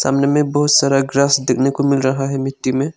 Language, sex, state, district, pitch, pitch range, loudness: Hindi, male, Arunachal Pradesh, Lower Dibang Valley, 135 Hz, 135-140 Hz, -16 LUFS